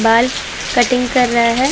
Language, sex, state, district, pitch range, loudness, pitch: Hindi, female, Uttar Pradesh, Varanasi, 235-250 Hz, -15 LUFS, 245 Hz